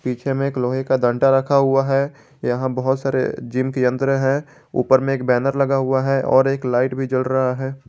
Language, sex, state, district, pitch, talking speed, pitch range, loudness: Hindi, male, Jharkhand, Garhwa, 130 Hz, 230 wpm, 130-135 Hz, -19 LUFS